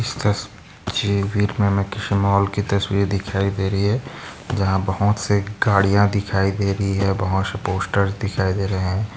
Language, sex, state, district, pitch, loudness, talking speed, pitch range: Hindi, male, Maharashtra, Nagpur, 100 Hz, -21 LUFS, 175 wpm, 95-100 Hz